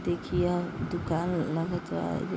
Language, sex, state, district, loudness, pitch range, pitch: Bhojpuri, female, Bihar, East Champaran, -30 LUFS, 165-175 Hz, 175 Hz